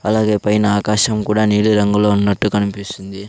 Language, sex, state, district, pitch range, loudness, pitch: Telugu, male, Andhra Pradesh, Sri Satya Sai, 100-105 Hz, -15 LUFS, 105 Hz